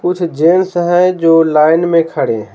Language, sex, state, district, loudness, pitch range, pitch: Hindi, male, Bihar, Patna, -11 LUFS, 160-175 Hz, 165 Hz